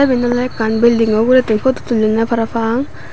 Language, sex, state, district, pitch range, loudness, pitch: Chakma, female, Tripura, Dhalai, 225-250 Hz, -14 LUFS, 235 Hz